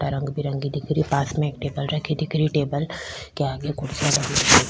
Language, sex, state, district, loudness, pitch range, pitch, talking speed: Rajasthani, female, Rajasthan, Churu, -23 LUFS, 140-155 Hz, 145 Hz, 230 wpm